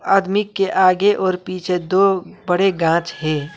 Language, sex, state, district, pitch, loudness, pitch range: Hindi, male, West Bengal, Alipurduar, 185 Hz, -18 LUFS, 175-195 Hz